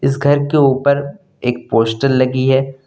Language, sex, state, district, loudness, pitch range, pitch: Hindi, male, Jharkhand, Deoghar, -15 LUFS, 130-140 Hz, 135 Hz